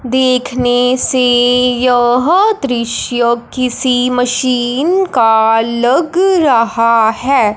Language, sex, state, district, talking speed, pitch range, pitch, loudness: Hindi, male, Punjab, Fazilka, 80 wpm, 235-260 Hz, 250 Hz, -12 LUFS